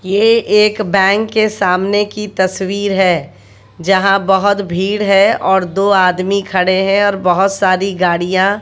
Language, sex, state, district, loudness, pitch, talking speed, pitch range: Hindi, female, Bihar, West Champaran, -13 LUFS, 195 Hz, 145 wpm, 185-205 Hz